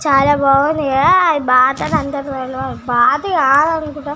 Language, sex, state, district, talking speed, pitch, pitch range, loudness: Telugu, female, Telangana, Nalgonda, 160 wpm, 285 Hz, 270-305 Hz, -14 LUFS